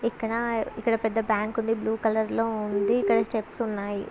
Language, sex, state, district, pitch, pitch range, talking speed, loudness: Telugu, female, Andhra Pradesh, Visakhapatnam, 220 Hz, 215-225 Hz, 175 wpm, -26 LUFS